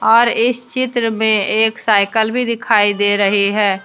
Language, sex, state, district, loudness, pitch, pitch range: Hindi, female, Jharkhand, Deoghar, -14 LUFS, 220 Hz, 205-235 Hz